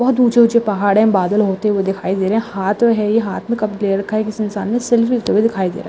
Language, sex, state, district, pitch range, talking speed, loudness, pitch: Hindi, female, Andhra Pradesh, Chittoor, 200-230 Hz, 315 wpm, -16 LUFS, 215 Hz